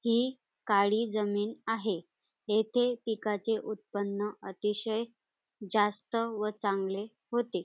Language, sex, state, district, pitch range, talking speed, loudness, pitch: Marathi, female, Maharashtra, Dhule, 205-230 Hz, 95 wpm, -32 LUFS, 215 Hz